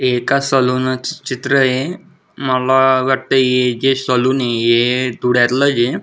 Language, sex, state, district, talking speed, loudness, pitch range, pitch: Marathi, male, Maharashtra, Dhule, 140 wpm, -15 LUFS, 125-135 Hz, 130 Hz